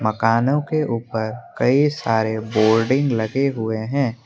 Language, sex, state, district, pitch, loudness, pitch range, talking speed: Hindi, male, Assam, Kamrup Metropolitan, 115 Hz, -20 LUFS, 110-135 Hz, 125 wpm